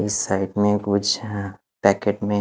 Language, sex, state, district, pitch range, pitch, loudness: Hindi, male, Haryana, Rohtak, 100-105 Hz, 105 Hz, -22 LUFS